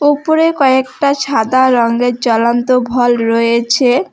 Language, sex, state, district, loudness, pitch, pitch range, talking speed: Bengali, female, West Bengal, Alipurduar, -12 LUFS, 250 Hz, 235-275 Hz, 100 wpm